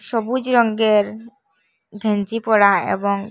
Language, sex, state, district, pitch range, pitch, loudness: Bengali, female, Assam, Hailakandi, 200-230 Hz, 215 Hz, -18 LUFS